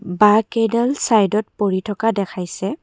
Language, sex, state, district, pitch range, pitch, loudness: Assamese, female, Assam, Kamrup Metropolitan, 200-225 Hz, 210 Hz, -18 LUFS